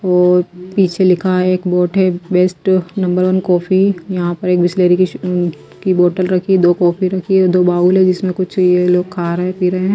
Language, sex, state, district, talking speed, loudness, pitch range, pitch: Hindi, female, Himachal Pradesh, Shimla, 225 wpm, -14 LUFS, 180-185 Hz, 180 Hz